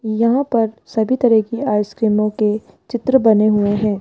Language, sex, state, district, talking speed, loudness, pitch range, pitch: Hindi, female, Rajasthan, Jaipur, 165 wpm, -17 LUFS, 210-235 Hz, 220 Hz